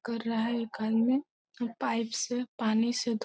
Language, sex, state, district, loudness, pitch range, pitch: Hindi, female, Bihar, Gopalganj, -31 LUFS, 225-245 Hz, 235 Hz